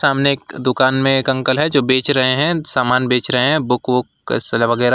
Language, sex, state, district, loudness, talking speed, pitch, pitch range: Hindi, male, West Bengal, Alipurduar, -15 LUFS, 230 wpm, 130 Hz, 125-140 Hz